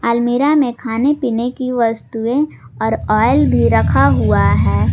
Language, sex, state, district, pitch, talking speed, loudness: Hindi, female, Jharkhand, Garhwa, 230 Hz, 145 wpm, -15 LUFS